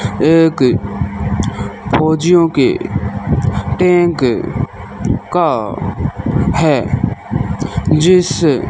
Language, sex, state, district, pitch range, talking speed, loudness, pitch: Hindi, male, Rajasthan, Bikaner, 100-160 Hz, 50 wpm, -14 LUFS, 130 Hz